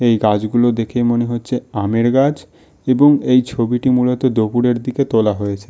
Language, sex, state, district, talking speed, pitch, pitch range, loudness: Bengali, male, West Bengal, Malda, 160 wpm, 120 Hz, 115-130 Hz, -16 LUFS